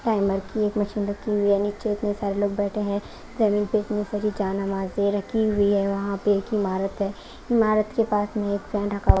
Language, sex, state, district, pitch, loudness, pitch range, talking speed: Hindi, female, Haryana, Rohtak, 205 Hz, -24 LUFS, 200-210 Hz, 235 wpm